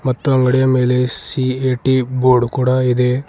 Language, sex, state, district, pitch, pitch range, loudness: Kannada, male, Karnataka, Bidar, 130 Hz, 125-130 Hz, -15 LUFS